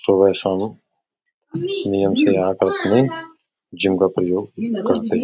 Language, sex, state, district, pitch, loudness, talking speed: Hindi, male, Uttar Pradesh, Etah, 105 Hz, -19 LUFS, 135 wpm